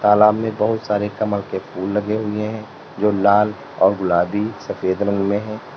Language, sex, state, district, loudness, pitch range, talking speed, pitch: Hindi, male, Uttar Pradesh, Lalitpur, -19 LUFS, 100-105 Hz, 185 wpm, 105 Hz